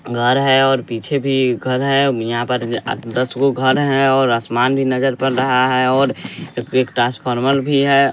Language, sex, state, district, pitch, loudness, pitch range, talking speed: Hindi, male, Bihar, West Champaran, 130 Hz, -16 LUFS, 125-135 Hz, 185 wpm